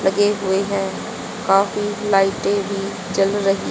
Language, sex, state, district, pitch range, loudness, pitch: Hindi, female, Haryana, Charkhi Dadri, 195-205 Hz, -20 LUFS, 195 Hz